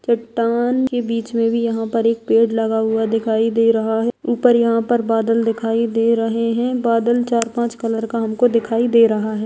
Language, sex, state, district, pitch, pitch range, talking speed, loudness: Hindi, female, Bihar, Begusarai, 230 Hz, 225-235 Hz, 210 wpm, -18 LUFS